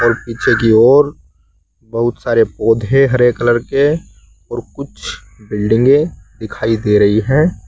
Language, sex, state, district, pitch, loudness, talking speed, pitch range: Hindi, male, Uttar Pradesh, Saharanpur, 115 Hz, -13 LUFS, 135 wpm, 105-130 Hz